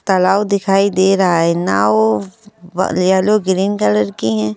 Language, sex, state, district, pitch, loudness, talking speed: Hindi, female, Madhya Pradesh, Bhopal, 185 Hz, -14 LUFS, 145 wpm